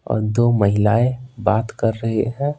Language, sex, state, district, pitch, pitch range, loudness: Hindi, male, Bihar, Patna, 115 Hz, 110-120 Hz, -19 LUFS